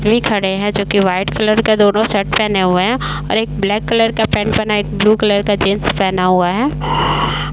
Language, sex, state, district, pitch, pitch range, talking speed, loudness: Hindi, female, Uttar Pradesh, Varanasi, 205 Hz, 195-215 Hz, 225 wpm, -14 LUFS